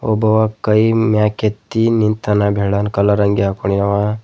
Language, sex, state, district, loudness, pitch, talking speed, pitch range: Kannada, male, Karnataka, Bidar, -15 LUFS, 105 Hz, 100 wpm, 100-110 Hz